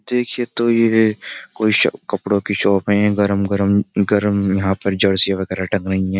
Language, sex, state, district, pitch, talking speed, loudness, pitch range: Hindi, male, Uttar Pradesh, Jyotiba Phule Nagar, 100 Hz, 175 wpm, -17 LUFS, 95-105 Hz